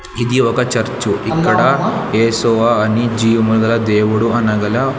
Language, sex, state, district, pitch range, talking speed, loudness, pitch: Telugu, male, Andhra Pradesh, Sri Satya Sai, 110-120 Hz, 120 wpm, -14 LUFS, 115 Hz